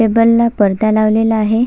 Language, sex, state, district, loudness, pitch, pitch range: Marathi, female, Maharashtra, Solapur, -13 LUFS, 220 Hz, 215-230 Hz